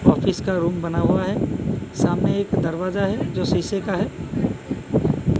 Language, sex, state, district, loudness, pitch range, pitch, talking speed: Hindi, male, Odisha, Malkangiri, -22 LUFS, 175-195 Hz, 185 Hz, 155 wpm